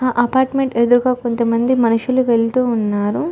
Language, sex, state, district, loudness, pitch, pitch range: Telugu, female, Telangana, Karimnagar, -16 LUFS, 240 Hz, 230-255 Hz